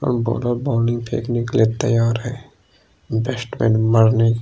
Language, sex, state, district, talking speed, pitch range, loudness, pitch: Hindi, male, Bihar, Saharsa, 150 wpm, 115-120 Hz, -19 LUFS, 115 Hz